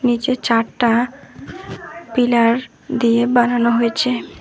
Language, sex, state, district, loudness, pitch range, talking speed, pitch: Bengali, female, West Bengal, Alipurduar, -17 LUFS, 235-250 Hz, 80 wpm, 240 Hz